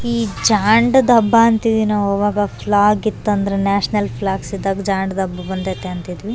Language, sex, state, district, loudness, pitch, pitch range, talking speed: Kannada, female, Karnataka, Raichur, -17 LUFS, 205 Hz, 195-220 Hz, 140 wpm